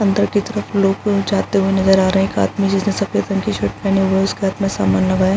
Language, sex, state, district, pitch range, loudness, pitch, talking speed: Hindi, female, Bihar, Araria, 190-200 Hz, -17 LUFS, 195 Hz, 290 wpm